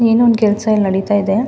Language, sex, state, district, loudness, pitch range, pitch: Kannada, female, Karnataka, Mysore, -14 LUFS, 200-230 Hz, 215 Hz